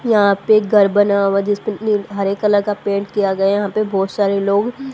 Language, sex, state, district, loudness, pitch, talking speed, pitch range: Hindi, female, Haryana, Charkhi Dadri, -16 LUFS, 205 Hz, 230 wpm, 200-210 Hz